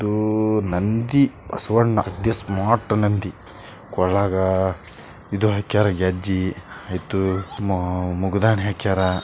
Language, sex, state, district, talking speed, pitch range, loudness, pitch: Kannada, male, Karnataka, Bijapur, 90 wpm, 95-110 Hz, -21 LUFS, 100 Hz